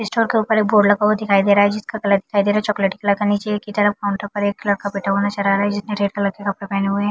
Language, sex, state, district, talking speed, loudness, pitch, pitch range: Hindi, female, Chhattisgarh, Bilaspur, 320 wpm, -18 LUFS, 205 Hz, 200-210 Hz